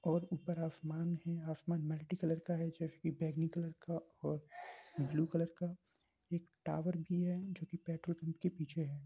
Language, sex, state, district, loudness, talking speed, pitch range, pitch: Hindi, male, Bihar, Samastipur, -41 LUFS, 185 wpm, 160-175 Hz, 165 Hz